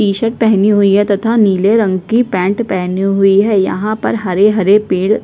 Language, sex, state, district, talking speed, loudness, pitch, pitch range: Hindi, female, Chhattisgarh, Sukma, 215 wpm, -12 LUFS, 200 Hz, 195-215 Hz